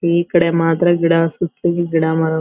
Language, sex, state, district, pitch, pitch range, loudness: Kannada, female, Karnataka, Belgaum, 170 Hz, 165-175 Hz, -16 LUFS